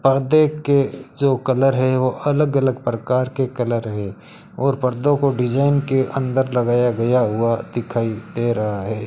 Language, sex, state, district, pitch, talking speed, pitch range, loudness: Hindi, male, Rajasthan, Bikaner, 130 Hz, 165 wpm, 120-135 Hz, -19 LUFS